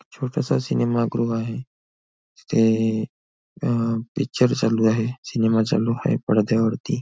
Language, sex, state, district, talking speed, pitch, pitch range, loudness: Marathi, male, Maharashtra, Nagpur, 100 wpm, 115 Hz, 110-115 Hz, -22 LUFS